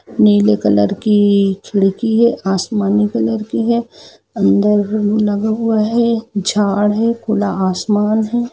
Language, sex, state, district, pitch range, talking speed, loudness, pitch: Hindi, female, Jharkhand, Jamtara, 190-220 Hz, 120 wpm, -15 LUFS, 205 Hz